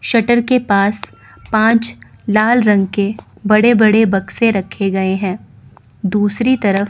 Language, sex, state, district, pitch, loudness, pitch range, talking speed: Hindi, female, Chandigarh, Chandigarh, 215 Hz, -14 LUFS, 200-230 Hz, 130 wpm